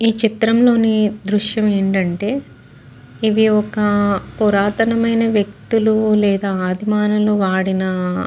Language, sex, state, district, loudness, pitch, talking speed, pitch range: Telugu, female, Andhra Pradesh, Guntur, -16 LUFS, 210 Hz, 100 wpm, 200-220 Hz